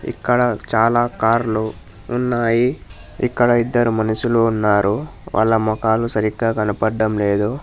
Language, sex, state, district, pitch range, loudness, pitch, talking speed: Telugu, male, Telangana, Hyderabad, 105-120 Hz, -18 LUFS, 110 Hz, 100 wpm